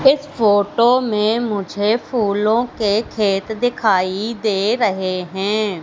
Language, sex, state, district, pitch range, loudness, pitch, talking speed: Hindi, female, Madhya Pradesh, Katni, 200-235 Hz, -18 LUFS, 215 Hz, 115 wpm